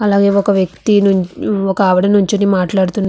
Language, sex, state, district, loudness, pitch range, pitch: Telugu, female, Andhra Pradesh, Visakhapatnam, -13 LUFS, 190-200 Hz, 200 Hz